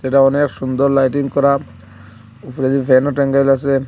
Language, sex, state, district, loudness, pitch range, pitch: Bengali, male, Assam, Hailakandi, -15 LUFS, 130-140 Hz, 135 Hz